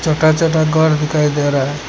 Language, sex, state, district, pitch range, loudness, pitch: Hindi, male, Assam, Hailakandi, 145-160 Hz, -15 LUFS, 155 Hz